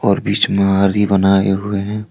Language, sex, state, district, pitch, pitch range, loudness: Hindi, male, Jharkhand, Deoghar, 100 Hz, 95-100 Hz, -15 LUFS